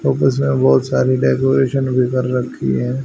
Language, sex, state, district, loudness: Hindi, male, Haryana, Rohtak, -16 LUFS